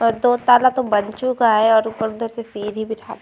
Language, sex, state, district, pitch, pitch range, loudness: Hindi, female, Bihar, Vaishali, 225 Hz, 220-245 Hz, -18 LUFS